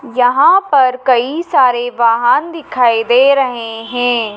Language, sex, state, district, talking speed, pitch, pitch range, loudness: Hindi, female, Madhya Pradesh, Dhar, 125 wpm, 250 Hz, 240-275 Hz, -12 LUFS